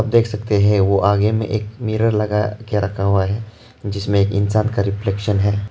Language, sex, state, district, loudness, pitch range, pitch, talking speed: Hindi, male, Arunachal Pradesh, Lower Dibang Valley, -18 LUFS, 100-110 Hz, 105 Hz, 210 wpm